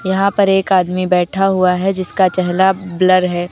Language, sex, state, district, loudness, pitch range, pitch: Hindi, female, Uttar Pradesh, Lucknow, -14 LUFS, 180-195 Hz, 185 Hz